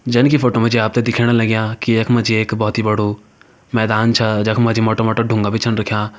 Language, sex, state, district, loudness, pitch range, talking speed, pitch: Hindi, male, Uttarakhand, Tehri Garhwal, -16 LUFS, 110-115 Hz, 270 wpm, 110 Hz